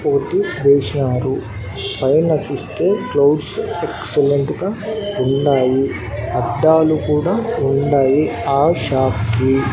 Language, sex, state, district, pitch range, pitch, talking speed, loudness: Telugu, male, Andhra Pradesh, Annamaya, 130-155 Hz, 140 Hz, 85 wpm, -17 LUFS